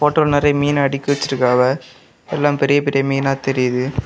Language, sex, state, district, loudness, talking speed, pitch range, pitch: Tamil, male, Tamil Nadu, Kanyakumari, -17 LUFS, 150 wpm, 130-145 Hz, 140 Hz